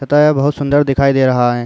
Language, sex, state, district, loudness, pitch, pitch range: Hindi, male, Uttar Pradesh, Varanasi, -13 LUFS, 140 Hz, 130-145 Hz